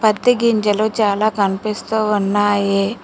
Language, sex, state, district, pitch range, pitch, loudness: Telugu, female, Telangana, Mahabubabad, 205-220 Hz, 210 Hz, -17 LUFS